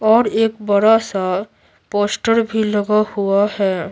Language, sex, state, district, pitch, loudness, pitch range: Hindi, female, Bihar, Patna, 210 Hz, -17 LUFS, 200-220 Hz